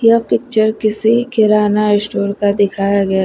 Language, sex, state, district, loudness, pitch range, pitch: Hindi, female, Uttar Pradesh, Shamli, -14 LUFS, 200-220 Hz, 210 Hz